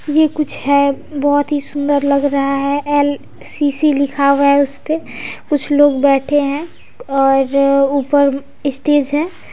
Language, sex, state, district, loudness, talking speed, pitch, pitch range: Maithili, female, Bihar, Samastipur, -15 LUFS, 140 wpm, 285 Hz, 280-290 Hz